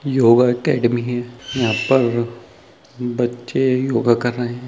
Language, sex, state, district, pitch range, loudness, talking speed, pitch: Hindi, male, Chhattisgarh, Bilaspur, 120-130 Hz, -18 LUFS, 130 wpm, 120 Hz